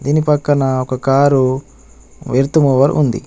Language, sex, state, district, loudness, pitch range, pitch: Telugu, male, Telangana, Adilabad, -14 LUFS, 130-145 Hz, 135 Hz